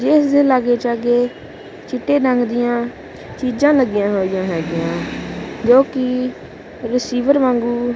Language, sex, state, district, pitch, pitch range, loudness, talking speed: Punjabi, female, Punjab, Kapurthala, 245 Hz, 240-260 Hz, -17 LUFS, 115 wpm